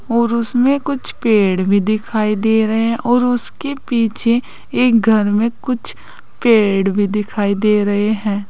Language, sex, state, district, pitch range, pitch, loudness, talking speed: Hindi, female, Uttar Pradesh, Saharanpur, 210-240 Hz, 220 Hz, -15 LUFS, 155 wpm